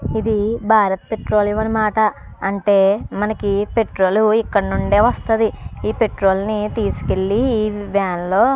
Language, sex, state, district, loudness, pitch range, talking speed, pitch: Telugu, female, Andhra Pradesh, Chittoor, -18 LUFS, 200-220 Hz, 105 wpm, 210 Hz